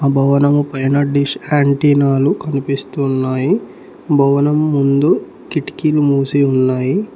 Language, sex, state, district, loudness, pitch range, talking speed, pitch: Telugu, male, Telangana, Mahabubabad, -15 LUFS, 135-145 Hz, 85 wpm, 140 Hz